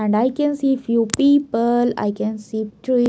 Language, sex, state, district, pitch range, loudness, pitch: English, female, Maharashtra, Mumbai Suburban, 220-265 Hz, -19 LUFS, 240 Hz